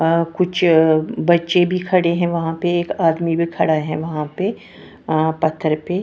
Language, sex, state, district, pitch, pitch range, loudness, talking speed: Hindi, female, Bihar, Patna, 170 Hz, 160-175 Hz, -18 LUFS, 170 wpm